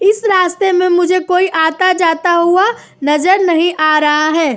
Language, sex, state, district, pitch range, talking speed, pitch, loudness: Hindi, female, Uttar Pradesh, Jyotiba Phule Nagar, 320-370 Hz, 160 wpm, 355 Hz, -12 LUFS